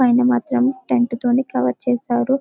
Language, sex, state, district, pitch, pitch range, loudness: Telugu, female, Telangana, Karimnagar, 245 Hz, 240-255 Hz, -19 LUFS